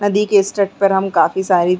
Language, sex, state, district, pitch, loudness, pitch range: Hindi, female, Chhattisgarh, Sarguja, 195 Hz, -15 LUFS, 185-200 Hz